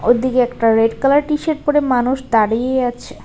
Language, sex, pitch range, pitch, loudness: Bengali, female, 230-280 Hz, 250 Hz, -16 LUFS